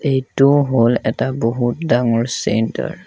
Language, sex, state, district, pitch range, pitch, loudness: Assamese, male, Assam, Sonitpur, 115-135 Hz, 120 Hz, -17 LUFS